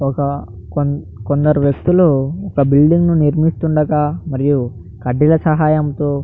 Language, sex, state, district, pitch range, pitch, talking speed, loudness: Telugu, male, Andhra Pradesh, Anantapur, 140-155 Hz, 145 Hz, 75 wpm, -15 LUFS